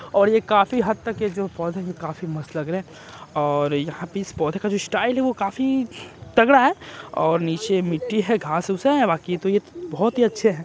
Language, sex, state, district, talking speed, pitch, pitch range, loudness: Hindi, male, Bihar, Jamui, 235 wpm, 195 Hz, 165-220 Hz, -22 LUFS